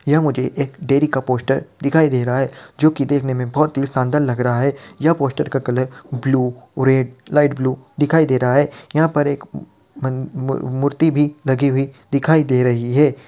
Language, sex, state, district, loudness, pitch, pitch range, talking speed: Hindi, male, Bihar, Darbhanga, -18 LUFS, 135 Hz, 130-145 Hz, 205 wpm